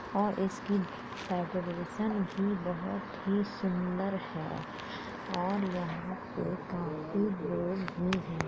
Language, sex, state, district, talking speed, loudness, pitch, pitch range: Hindi, male, Uttar Pradesh, Jalaun, 105 wpm, -34 LUFS, 190 Hz, 180-200 Hz